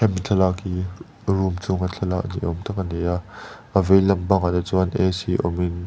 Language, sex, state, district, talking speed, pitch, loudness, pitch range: Mizo, male, Mizoram, Aizawl, 195 wpm, 95 Hz, -22 LUFS, 90-95 Hz